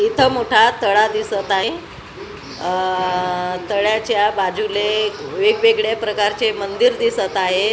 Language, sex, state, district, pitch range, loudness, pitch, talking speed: Marathi, female, Maharashtra, Gondia, 195-235 Hz, -17 LUFS, 210 Hz, 100 wpm